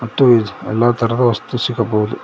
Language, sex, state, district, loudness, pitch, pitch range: Kannada, male, Karnataka, Koppal, -16 LUFS, 115 Hz, 110-120 Hz